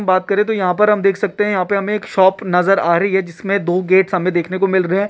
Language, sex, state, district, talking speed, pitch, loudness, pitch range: Hindi, male, Rajasthan, Churu, 315 wpm, 190 Hz, -16 LUFS, 185-200 Hz